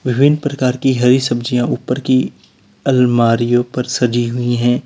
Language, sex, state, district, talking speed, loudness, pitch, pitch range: Hindi, male, Uttar Pradesh, Lalitpur, 150 wpm, -15 LUFS, 125 Hz, 120-130 Hz